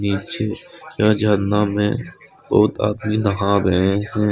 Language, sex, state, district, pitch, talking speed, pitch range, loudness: Hindi, male, Jharkhand, Deoghar, 105 Hz, 125 wpm, 100-105 Hz, -19 LUFS